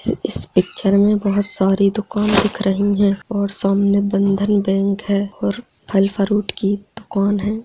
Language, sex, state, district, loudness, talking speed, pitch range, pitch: Hindi, male, Bihar, Lakhisarai, -18 LUFS, 155 wpm, 195-205 Hz, 200 Hz